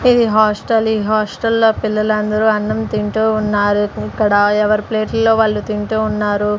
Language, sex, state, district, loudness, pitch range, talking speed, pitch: Telugu, female, Andhra Pradesh, Sri Satya Sai, -15 LUFS, 210-220 Hz, 125 wpm, 215 Hz